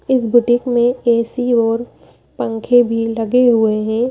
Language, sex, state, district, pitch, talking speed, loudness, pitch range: Hindi, female, Madhya Pradesh, Bhopal, 240 Hz, 160 wpm, -15 LUFS, 230-245 Hz